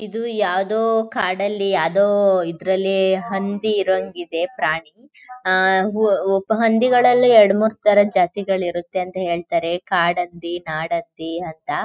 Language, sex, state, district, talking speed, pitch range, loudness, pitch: Kannada, female, Karnataka, Chamarajanagar, 95 wpm, 175-215 Hz, -19 LUFS, 190 Hz